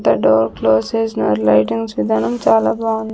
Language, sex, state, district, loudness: Telugu, female, Andhra Pradesh, Sri Satya Sai, -16 LUFS